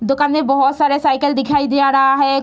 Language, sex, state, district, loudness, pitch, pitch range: Hindi, female, Bihar, Sitamarhi, -15 LUFS, 275 Hz, 275-290 Hz